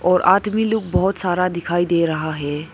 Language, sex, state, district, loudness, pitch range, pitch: Hindi, female, Arunachal Pradesh, Papum Pare, -19 LUFS, 165-190 Hz, 175 Hz